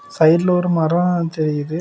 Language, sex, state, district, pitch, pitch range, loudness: Tamil, male, Tamil Nadu, Kanyakumari, 165 Hz, 160-180 Hz, -17 LUFS